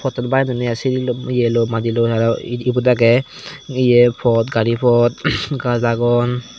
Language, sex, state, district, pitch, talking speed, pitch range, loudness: Chakma, male, Tripura, Dhalai, 120 Hz, 155 wpm, 115-125 Hz, -17 LUFS